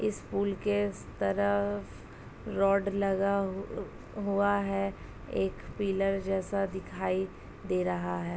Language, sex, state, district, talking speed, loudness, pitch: Hindi, female, Uttar Pradesh, Ghazipur, 120 wpm, -31 LUFS, 195 Hz